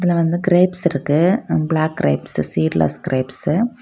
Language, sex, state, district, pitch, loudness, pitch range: Tamil, female, Tamil Nadu, Kanyakumari, 160 Hz, -18 LUFS, 130-180 Hz